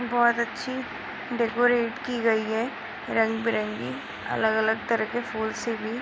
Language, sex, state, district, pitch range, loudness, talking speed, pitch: Hindi, female, Uttar Pradesh, Hamirpur, 220-240 Hz, -26 LUFS, 140 wpm, 230 Hz